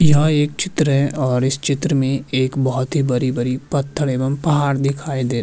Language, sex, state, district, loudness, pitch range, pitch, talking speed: Hindi, male, Bihar, Vaishali, -19 LUFS, 130-145 Hz, 140 Hz, 220 wpm